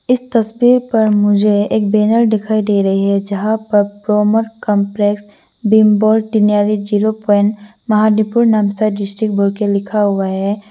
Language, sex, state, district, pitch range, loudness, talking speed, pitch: Hindi, female, Arunachal Pradesh, Lower Dibang Valley, 205-220 Hz, -14 LUFS, 125 wpm, 210 Hz